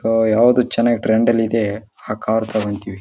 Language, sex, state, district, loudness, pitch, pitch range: Kannada, male, Karnataka, Raichur, -17 LUFS, 110 Hz, 110-115 Hz